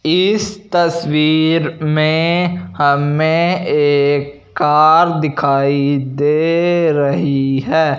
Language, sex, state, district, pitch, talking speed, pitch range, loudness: Hindi, male, Punjab, Fazilka, 155 Hz, 75 wpm, 145-170 Hz, -14 LUFS